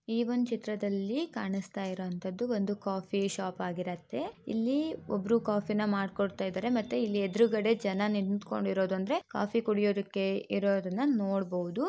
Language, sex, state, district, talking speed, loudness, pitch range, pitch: Kannada, female, Karnataka, Dakshina Kannada, 120 wpm, -32 LUFS, 195-225 Hz, 200 Hz